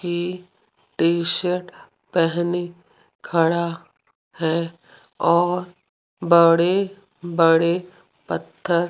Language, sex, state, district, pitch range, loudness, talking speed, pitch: Hindi, female, Rajasthan, Jaipur, 170-180 Hz, -20 LUFS, 75 wpm, 175 Hz